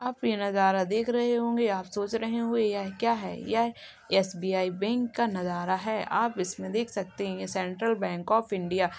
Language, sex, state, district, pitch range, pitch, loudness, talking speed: Hindi, male, Uttar Pradesh, Jalaun, 190-230 Hz, 205 Hz, -28 LUFS, 195 wpm